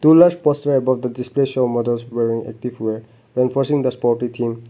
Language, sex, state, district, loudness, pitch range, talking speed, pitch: English, male, Nagaland, Dimapur, -19 LUFS, 115-135 Hz, 190 wpm, 125 Hz